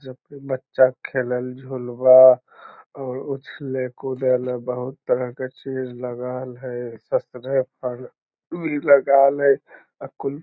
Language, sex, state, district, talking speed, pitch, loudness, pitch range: Magahi, male, Bihar, Lakhisarai, 110 wpm, 130 Hz, -21 LUFS, 125-135 Hz